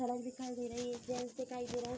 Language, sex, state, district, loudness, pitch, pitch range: Hindi, female, Bihar, Araria, -42 LUFS, 245 Hz, 245-250 Hz